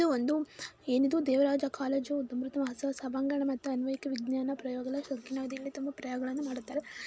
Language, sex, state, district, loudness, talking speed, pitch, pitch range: Kannada, male, Karnataka, Mysore, -33 LUFS, 135 wpm, 270 Hz, 260-280 Hz